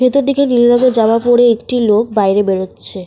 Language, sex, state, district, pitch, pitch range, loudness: Bengali, female, Jharkhand, Sahebganj, 235 Hz, 210-250 Hz, -12 LUFS